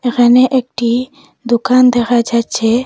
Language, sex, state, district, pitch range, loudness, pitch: Bengali, female, Assam, Hailakandi, 235-255 Hz, -12 LUFS, 245 Hz